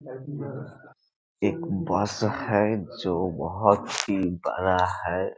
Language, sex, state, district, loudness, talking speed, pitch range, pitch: Hindi, male, Bihar, Muzaffarpur, -26 LUFS, 90 wpm, 90-130 Hz, 105 Hz